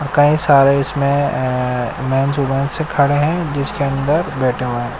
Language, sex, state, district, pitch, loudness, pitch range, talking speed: Hindi, male, Odisha, Nuapada, 140 Hz, -16 LUFS, 130-145 Hz, 170 wpm